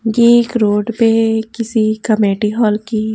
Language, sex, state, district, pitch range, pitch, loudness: Hindi, female, Haryana, Jhajjar, 215-230 Hz, 220 Hz, -14 LUFS